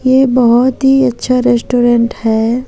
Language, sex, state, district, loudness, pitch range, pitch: Hindi, female, Madhya Pradesh, Umaria, -11 LUFS, 235-255 Hz, 245 Hz